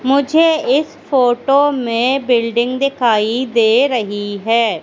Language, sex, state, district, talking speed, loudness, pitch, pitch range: Hindi, female, Madhya Pradesh, Katni, 110 wpm, -15 LUFS, 250 Hz, 230-275 Hz